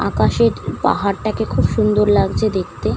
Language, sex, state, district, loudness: Bengali, female, West Bengal, Malda, -17 LUFS